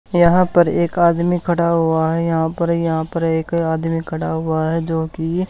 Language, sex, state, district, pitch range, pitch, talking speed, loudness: Hindi, male, Haryana, Charkhi Dadri, 160-170 Hz, 165 Hz, 195 wpm, -18 LUFS